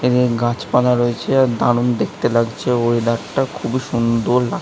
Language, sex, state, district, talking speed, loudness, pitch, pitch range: Bengali, male, West Bengal, Kolkata, 130 wpm, -18 LUFS, 120 Hz, 115-125 Hz